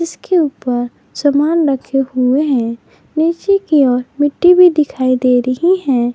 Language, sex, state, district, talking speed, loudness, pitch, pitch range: Hindi, female, Jharkhand, Garhwa, 145 wpm, -14 LUFS, 280 Hz, 255-330 Hz